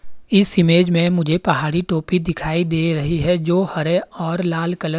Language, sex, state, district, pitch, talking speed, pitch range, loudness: Hindi, male, Himachal Pradesh, Shimla, 170 Hz, 190 wpm, 165-180 Hz, -18 LUFS